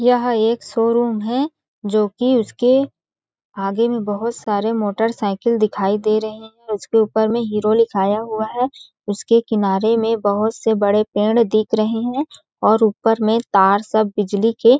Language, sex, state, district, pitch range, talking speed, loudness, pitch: Hindi, female, Chhattisgarh, Balrampur, 210-230 Hz, 170 wpm, -18 LUFS, 220 Hz